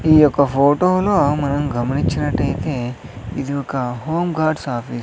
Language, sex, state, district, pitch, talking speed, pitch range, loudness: Telugu, male, Andhra Pradesh, Sri Satya Sai, 140 Hz, 120 wpm, 125-155 Hz, -18 LUFS